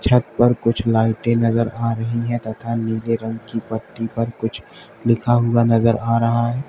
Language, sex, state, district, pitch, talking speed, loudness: Hindi, male, Uttar Pradesh, Lalitpur, 115 Hz, 190 wpm, -19 LUFS